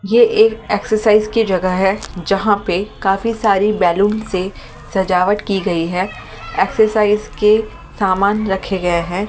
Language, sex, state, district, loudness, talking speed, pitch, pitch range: Hindi, female, Delhi, New Delhi, -16 LUFS, 140 wpm, 200 Hz, 185-215 Hz